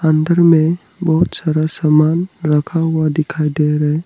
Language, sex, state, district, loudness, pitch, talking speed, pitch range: Hindi, male, Arunachal Pradesh, Lower Dibang Valley, -15 LUFS, 155 Hz, 160 wpm, 155-165 Hz